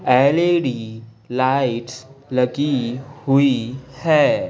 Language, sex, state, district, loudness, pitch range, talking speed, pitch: Hindi, male, Bihar, Patna, -19 LUFS, 125-140 Hz, 65 wpm, 130 Hz